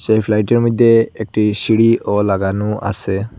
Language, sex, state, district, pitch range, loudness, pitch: Bengali, male, Assam, Hailakandi, 100-115 Hz, -15 LUFS, 105 Hz